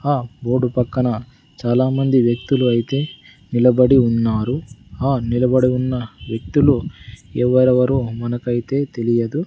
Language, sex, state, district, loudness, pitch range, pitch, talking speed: Telugu, male, Andhra Pradesh, Sri Satya Sai, -18 LUFS, 120-130 Hz, 125 Hz, 95 wpm